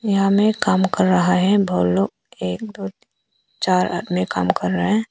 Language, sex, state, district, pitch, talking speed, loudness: Hindi, female, Arunachal Pradesh, Papum Pare, 185 Hz, 190 wpm, -19 LUFS